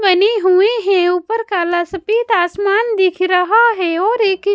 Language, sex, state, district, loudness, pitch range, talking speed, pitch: Hindi, female, Maharashtra, Gondia, -14 LUFS, 365-435 Hz, 160 wpm, 390 Hz